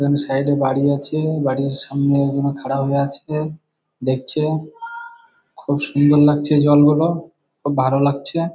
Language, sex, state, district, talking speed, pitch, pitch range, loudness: Bengali, male, West Bengal, Kolkata, 140 wpm, 145 Hz, 140-155 Hz, -18 LUFS